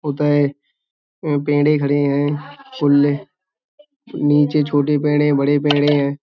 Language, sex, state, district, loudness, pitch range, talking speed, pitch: Hindi, male, Uttar Pradesh, Budaun, -17 LUFS, 145-150 Hz, 105 wpm, 145 Hz